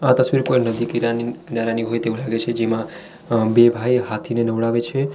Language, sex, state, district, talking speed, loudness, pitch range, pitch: Gujarati, male, Gujarat, Valsad, 185 wpm, -20 LUFS, 115-125 Hz, 115 Hz